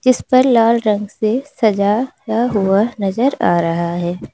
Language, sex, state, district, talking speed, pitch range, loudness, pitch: Hindi, female, Uttar Pradesh, Lalitpur, 150 wpm, 195-245 Hz, -16 LUFS, 220 Hz